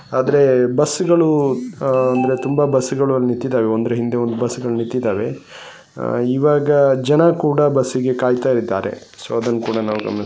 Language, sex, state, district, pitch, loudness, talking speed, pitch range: Kannada, male, Karnataka, Gulbarga, 130 Hz, -17 LUFS, 145 wpm, 120-145 Hz